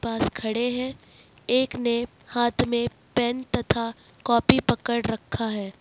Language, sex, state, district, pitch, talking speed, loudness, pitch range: Hindi, female, Jharkhand, Ranchi, 240 Hz, 135 wpm, -25 LUFS, 230-245 Hz